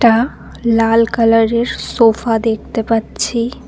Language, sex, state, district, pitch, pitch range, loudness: Bengali, female, West Bengal, Cooch Behar, 230 Hz, 225-235 Hz, -15 LUFS